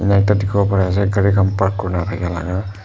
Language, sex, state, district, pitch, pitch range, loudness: Nagamese, male, Nagaland, Kohima, 100 Hz, 95-100 Hz, -17 LUFS